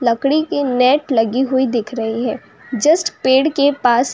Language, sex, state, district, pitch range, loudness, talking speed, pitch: Hindi, female, Uttar Pradesh, Jyotiba Phule Nagar, 240-285 Hz, -16 LUFS, 190 wpm, 260 Hz